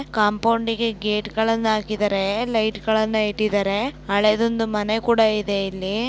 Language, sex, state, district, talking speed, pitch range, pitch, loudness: Kannada, female, Karnataka, Dakshina Kannada, 100 wpm, 210-225 Hz, 215 Hz, -21 LUFS